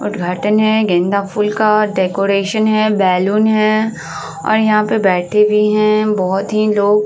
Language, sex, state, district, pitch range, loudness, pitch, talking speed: Hindi, female, Uttar Pradesh, Varanasi, 195-215 Hz, -14 LUFS, 210 Hz, 160 wpm